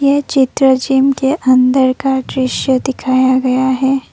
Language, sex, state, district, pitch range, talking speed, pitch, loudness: Hindi, female, Assam, Kamrup Metropolitan, 260-270 Hz, 145 wpm, 265 Hz, -13 LUFS